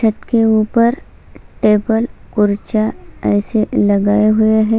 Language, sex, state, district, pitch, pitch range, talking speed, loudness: Hindi, female, Chhattisgarh, Sukma, 220 Hz, 210-225 Hz, 115 wpm, -15 LUFS